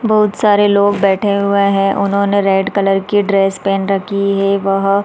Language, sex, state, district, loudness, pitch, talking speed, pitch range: Hindi, female, Chhattisgarh, Raigarh, -13 LUFS, 200 Hz, 190 wpm, 195-200 Hz